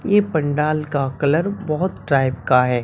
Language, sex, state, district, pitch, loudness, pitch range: Hindi, male, Bihar, Katihar, 150 Hz, -19 LUFS, 135-170 Hz